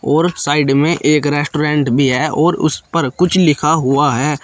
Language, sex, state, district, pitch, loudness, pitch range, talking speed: Hindi, male, Uttar Pradesh, Shamli, 150 Hz, -14 LUFS, 145-160 Hz, 190 wpm